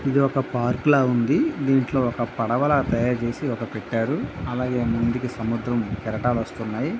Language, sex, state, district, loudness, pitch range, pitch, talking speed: Telugu, male, Andhra Pradesh, Visakhapatnam, -23 LUFS, 115-135 Hz, 120 Hz, 135 wpm